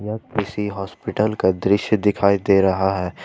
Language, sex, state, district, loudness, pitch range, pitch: Hindi, male, Jharkhand, Ranchi, -20 LUFS, 95-105 Hz, 100 Hz